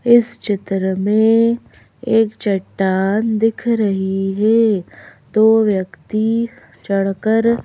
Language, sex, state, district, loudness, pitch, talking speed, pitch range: Hindi, female, Madhya Pradesh, Bhopal, -17 LUFS, 215 Hz, 85 wpm, 195-225 Hz